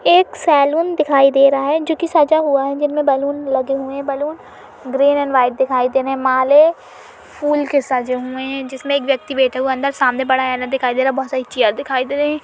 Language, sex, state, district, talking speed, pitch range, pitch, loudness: Hindi, female, Uttar Pradesh, Budaun, 235 wpm, 260-290 Hz, 275 Hz, -16 LUFS